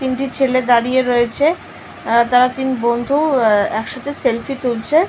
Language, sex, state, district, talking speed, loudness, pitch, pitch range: Bengali, female, West Bengal, North 24 Parganas, 140 wpm, -16 LUFS, 255 Hz, 235-275 Hz